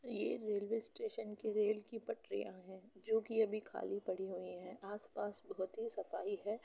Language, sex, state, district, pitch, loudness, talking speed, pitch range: Hindi, female, Uttar Pradesh, Jalaun, 210 Hz, -42 LUFS, 180 wpm, 190-220 Hz